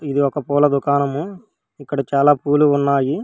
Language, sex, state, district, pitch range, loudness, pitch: Telugu, female, Telangana, Hyderabad, 140-145 Hz, -17 LUFS, 140 Hz